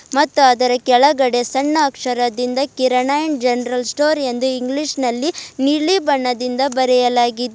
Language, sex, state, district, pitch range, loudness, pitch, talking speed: Kannada, female, Karnataka, Bidar, 250-285 Hz, -16 LUFS, 260 Hz, 120 wpm